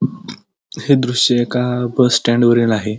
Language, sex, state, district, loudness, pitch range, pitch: Marathi, male, Maharashtra, Pune, -15 LUFS, 120-125 Hz, 125 Hz